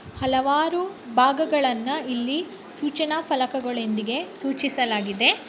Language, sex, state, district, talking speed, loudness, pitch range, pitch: Kannada, male, Karnataka, Bellary, 65 wpm, -23 LUFS, 250-310 Hz, 270 Hz